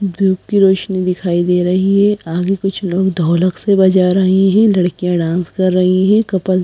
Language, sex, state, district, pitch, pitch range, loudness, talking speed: Hindi, female, Madhya Pradesh, Bhopal, 185 Hz, 180-195 Hz, -14 LUFS, 200 wpm